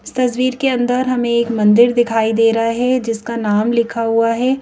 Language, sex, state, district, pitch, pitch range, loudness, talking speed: Hindi, female, Madhya Pradesh, Bhopal, 235 Hz, 230-250 Hz, -15 LUFS, 210 wpm